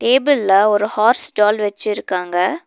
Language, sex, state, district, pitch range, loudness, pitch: Tamil, female, Tamil Nadu, Nilgiris, 200-235 Hz, -15 LUFS, 210 Hz